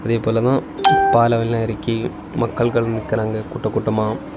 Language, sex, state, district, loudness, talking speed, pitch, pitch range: Tamil, male, Tamil Nadu, Kanyakumari, -19 LUFS, 125 wpm, 115 Hz, 110-120 Hz